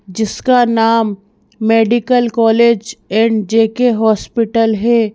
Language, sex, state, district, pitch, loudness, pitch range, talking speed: Hindi, female, Madhya Pradesh, Bhopal, 225 Hz, -13 LUFS, 220-235 Hz, 105 wpm